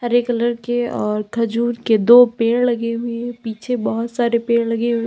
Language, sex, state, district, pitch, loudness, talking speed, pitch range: Hindi, female, Uttar Pradesh, Lalitpur, 235 Hz, -18 LUFS, 190 wpm, 230-240 Hz